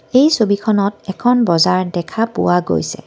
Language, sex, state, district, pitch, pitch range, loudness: Assamese, female, Assam, Kamrup Metropolitan, 200 Hz, 175-225 Hz, -15 LUFS